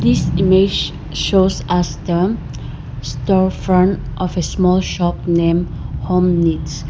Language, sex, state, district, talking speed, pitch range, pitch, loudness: English, female, Nagaland, Dimapur, 120 wpm, 170-185 Hz, 180 Hz, -17 LUFS